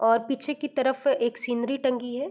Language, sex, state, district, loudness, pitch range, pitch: Hindi, female, Bihar, East Champaran, -26 LUFS, 240-275 Hz, 265 Hz